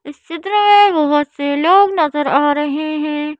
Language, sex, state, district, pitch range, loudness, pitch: Hindi, female, Madhya Pradesh, Bhopal, 295-350 Hz, -14 LUFS, 300 Hz